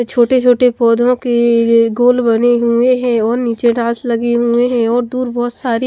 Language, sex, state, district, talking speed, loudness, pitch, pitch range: Hindi, female, Chandigarh, Chandigarh, 165 wpm, -13 LUFS, 240 Hz, 235-245 Hz